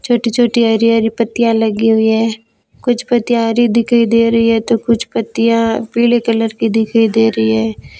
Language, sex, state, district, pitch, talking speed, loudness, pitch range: Hindi, female, Rajasthan, Bikaner, 230 Hz, 190 wpm, -13 LUFS, 225-235 Hz